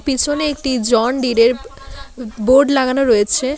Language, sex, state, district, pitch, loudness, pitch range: Bengali, female, West Bengal, Alipurduar, 260 Hz, -15 LUFS, 240-275 Hz